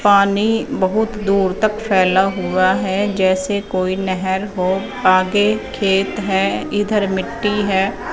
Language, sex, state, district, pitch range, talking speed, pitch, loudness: Hindi, female, Punjab, Fazilka, 190-205 Hz, 125 wpm, 195 Hz, -17 LUFS